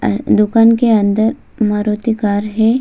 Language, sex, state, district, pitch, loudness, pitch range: Marathi, female, Maharashtra, Solapur, 215 Hz, -14 LUFS, 210-230 Hz